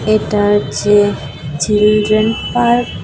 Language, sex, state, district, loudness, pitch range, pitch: Bengali, female, Tripura, West Tripura, -13 LUFS, 205-215 Hz, 210 Hz